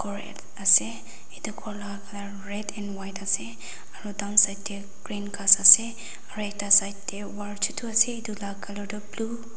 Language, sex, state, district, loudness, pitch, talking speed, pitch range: Nagamese, female, Nagaland, Dimapur, -22 LUFS, 205 Hz, 180 wpm, 200-210 Hz